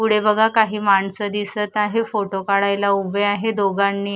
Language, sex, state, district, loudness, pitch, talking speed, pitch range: Marathi, female, Maharashtra, Mumbai Suburban, -19 LUFS, 205 Hz, 160 wpm, 200-210 Hz